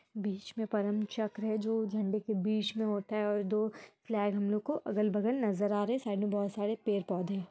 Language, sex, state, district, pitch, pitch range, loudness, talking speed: Hindi, female, Andhra Pradesh, Chittoor, 210 Hz, 205-220 Hz, -33 LUFS, 210 wpm